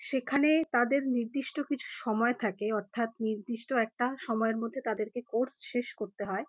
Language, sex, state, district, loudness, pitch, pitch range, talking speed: Bengali, female, West Bengal, North 24 Parganas, -31 LUFS, 240 Hz, 225-270 Hz, 150 wpm